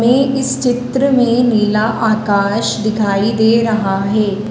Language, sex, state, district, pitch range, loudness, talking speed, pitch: Hindi, female, Madhya Pradesh, Dhar, 210-245 Hz, -14 LUFS, 120 wpm, 220 Hz